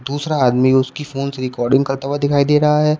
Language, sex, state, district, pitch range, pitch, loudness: Hindi, male, Uttar Pradesh, Shamli, 130-150 Hz, 140 Hz, -16 LUFS